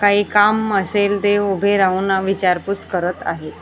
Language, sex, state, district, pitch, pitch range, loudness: Marathi, male, Maharashtra, Gondia, 200 Hz, 190-205 Hz, -17 LUFS